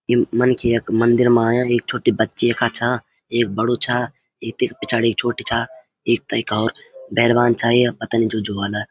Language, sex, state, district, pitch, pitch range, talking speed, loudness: Garhwali, male, Uttarakhand, Uttarkashi, 120 Hz, 115-120 Hz, 200 wpm, -18 LUFS